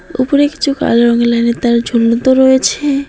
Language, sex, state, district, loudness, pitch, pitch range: Bengali, female, West Bengal, Alipurduar, -12 LUFS, 255 Hz, 235-280 Hz